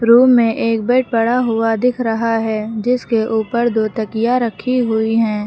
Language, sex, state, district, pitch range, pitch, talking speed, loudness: Hindi, female, Uttar Pradesh, Lucknow, 220-245 Hz, 230 Hz, 175 wpm, -16 LUFS